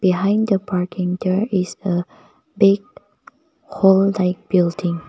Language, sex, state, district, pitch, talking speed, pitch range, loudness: English, female, Nagaland, Kohima, 185 Hz, 120 wpm, 180-200 Hz, -19 LUFS